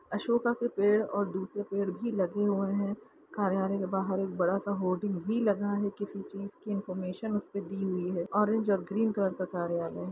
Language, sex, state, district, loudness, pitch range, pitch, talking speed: Hindi, female, Bihar, Saran, -31 LUFS, 190-205 Hz, 200 Hz, 190 wpm